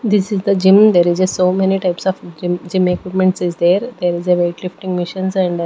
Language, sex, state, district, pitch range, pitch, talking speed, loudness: English, female, Maharashtra, Gondia, 175-190 Hz, 185 Hz, 235 wpm, -15 LUFS